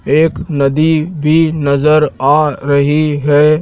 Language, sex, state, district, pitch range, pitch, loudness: Hindi, male, Madhya Pradesh, Dhar, 145-155 Hz, 150 Hz, -12 LUFS